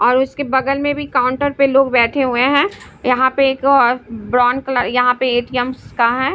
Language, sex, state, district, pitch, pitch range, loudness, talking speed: Hindi, female, Bihar, Patna, 260 Hz, 245-275 Hz, -15 LUFS, 215 wpm